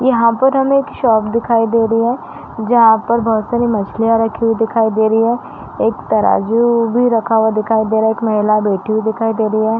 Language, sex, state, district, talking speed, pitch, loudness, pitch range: Hindi, female, Uttar Pradesh, Varanasi, 225 wpm, 225 Hz, -14 LUFS, 220-235 Hz